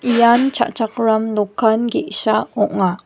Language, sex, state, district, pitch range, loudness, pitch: Garo, female, Meghalaya, West Garo Hills, 220-235 Hz, -17 LUFS, 225 Hz